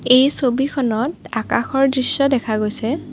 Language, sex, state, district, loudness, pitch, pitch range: Assamese, female, Assam, Kamrup Metropolitan, -18 LUFS, 260 Hz, 240-270 Hz